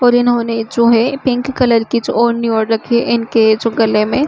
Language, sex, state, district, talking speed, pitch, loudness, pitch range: Hindi, female, Uttar Pradesh, Budaun, 240 wpm, 235 Hz, -14 LUFS, 225-245 Hz